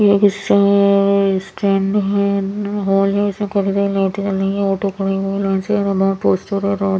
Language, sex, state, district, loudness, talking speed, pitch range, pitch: Hindi, female, Bihar, Patna, -17 LUFS, 180 wpm, 195-200 Hz, 200 Hz